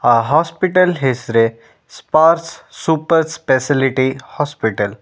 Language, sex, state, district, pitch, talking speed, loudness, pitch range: Kannada, male, Karnataka, Bangalore, 135 Hz, 95 wpm, -16 LUFS, 120-160 Hz